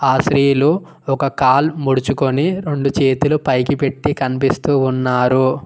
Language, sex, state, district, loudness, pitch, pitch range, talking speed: Telugu, male, Telangana, Mahabubabad, -16 LUFS, 140 Hz, 130-145 Hz, 115 wpm